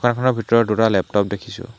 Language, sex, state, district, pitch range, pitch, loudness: Assamese, male, Assam, Hailakandi, 105-120 Hz, 115 Hz, -19 LUFS